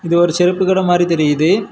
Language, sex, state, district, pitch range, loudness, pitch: Tamil, male, Tamil Nadu, Kanyakumari, 170-180 Hz, -14 LUFS, 175 Hz